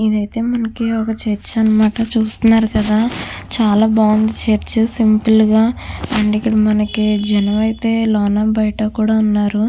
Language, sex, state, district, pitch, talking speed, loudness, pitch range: Telugu, female, Andhra Pradesh, Krishna, 220 Hz, 125 wpm, -15 LUFS, 215-225 Hz